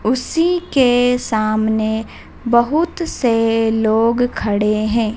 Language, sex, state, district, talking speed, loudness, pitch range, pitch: Hindi, female, Madhya Pradesh, Dhar, 95 wpm, -16 LUFS, 220-250 Hz, 230 Hz